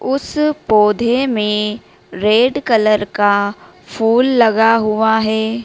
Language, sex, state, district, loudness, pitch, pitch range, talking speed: Hindi, female, Madhya Pradesh, Dhar, -14 LUFS, 220 Hz, 210-240 Hz, 105 wpm